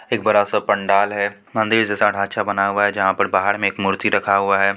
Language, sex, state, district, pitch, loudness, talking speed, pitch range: Hindi, female, Bihar, Supaul, 100 Hz, -18 LUFS, 240 wpm, 100-105 Hz